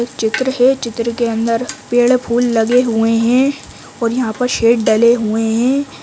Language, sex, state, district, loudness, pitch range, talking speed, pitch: Hindi, female, Bihar, Purnia, -15 LUFS, 230-250 Hz, 170 wpm, 235 Hz